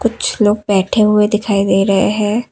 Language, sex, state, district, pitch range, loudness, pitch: Hindi, female, Assam, Kamrup Metropolitan, 200-215 Hz, -14 LUFS, 210 Hz